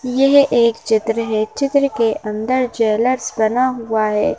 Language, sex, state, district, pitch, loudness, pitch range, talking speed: Hindi, female, Madhya Pradesh, Bhopal, 230 Hz, -17 LUFS, 220-255 Hz, 150 wpm